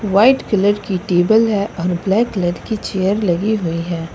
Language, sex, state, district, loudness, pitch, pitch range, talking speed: Hindi, female, Uttar Pradesh, Lucknow, -17 LUFS, 195 Hz, 175-210 Hz, 190 wpm